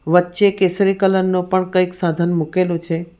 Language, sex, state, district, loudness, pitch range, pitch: Gujarati, female, Gujarat, Valsad, -17 LUFS, 170-190 Hz, 180 Hz